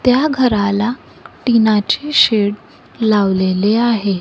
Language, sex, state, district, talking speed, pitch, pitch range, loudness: Marathi, female, Maharashtra, Gondia, 85 wpm, 215 Hz, 205-245 Hz, -15 LUFS